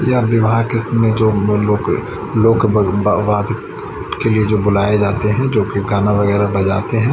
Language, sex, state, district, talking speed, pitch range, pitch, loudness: Hindi, male, Chandigarh, Chandigarh, 175 wpm, 105-115 Hz, 105 Hz, -15 LUFS